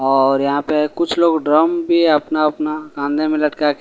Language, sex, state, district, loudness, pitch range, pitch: Hindi, male, Delhi, New Delhi, -16 LUFS, 145-155 Hz, 155 Hz